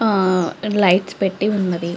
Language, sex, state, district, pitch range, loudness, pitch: Telugu, female, Andhra Pradesh, Chittoor, 180-205 Hz, -18 LUFS, 195 Hz